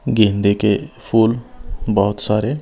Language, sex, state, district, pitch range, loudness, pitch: Hindi, male, Himachal Pradesh, Shimla, 100-120 Hz, -17 LUFS, 110 Hz